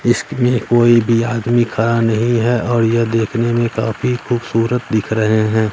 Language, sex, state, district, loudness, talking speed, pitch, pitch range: Hindi, male, Bihar, Katihar, -15 LUFS, 180 wpm, 115 Hz, 115-120 Hz